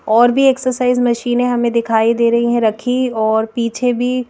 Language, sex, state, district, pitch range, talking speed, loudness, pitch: Hindi, female, Madhya Pradesh, Bhopal, 230-250 Hz, 180 wpm, -15 LUFS, 240 Hz